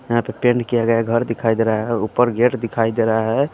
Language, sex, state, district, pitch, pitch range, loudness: Hindi, male, Bihar, West Champaran, 115 Hz, 115-120 Hz, -18 LUFS